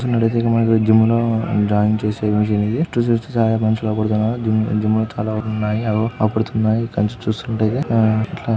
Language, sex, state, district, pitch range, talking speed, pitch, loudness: Telugu, male, Andhra Pradesh, Guntur, 110-115 Hz, 175 wpm, 110 Hz, -18 LUFS